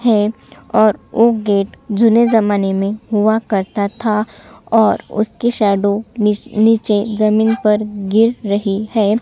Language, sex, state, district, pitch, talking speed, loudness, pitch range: Hindi, female, Chhattisgarh, Sukma, 215 Hz, 130 wpm, -15 LUFS, 205-225 Hz